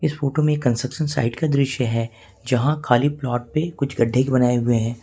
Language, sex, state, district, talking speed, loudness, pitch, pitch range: Hindi, male, Jharkhand, Ranchi, 190 wpm, -21 LUFS, 130 Hz, 120-145 Hz